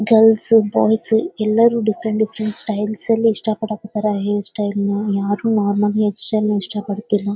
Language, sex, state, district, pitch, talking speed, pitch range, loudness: Kannada, female, Karnataka, Bellary, 215 Hz, 155 wpm, 205-220 Hz, -17 LUFS